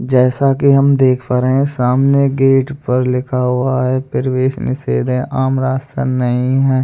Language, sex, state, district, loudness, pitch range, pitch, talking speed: Hindi, male, Delhi, New Delhi, -14 LUFS, 125-135 Hz, 130 Hz, 175 wpm